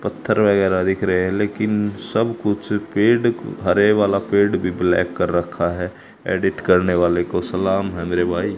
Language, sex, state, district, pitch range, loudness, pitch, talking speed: Hindi, male, Haryana, Charkhi Dadri, 90-105 Hz, -19 LUFS, 95 Hz, 180 wpm